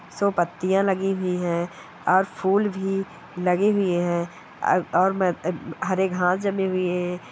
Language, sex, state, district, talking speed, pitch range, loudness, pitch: Hindi, male, Bihar, Kishanganj, 150 wpm, 180-195 Hz, -23 LUFS, 185 Hz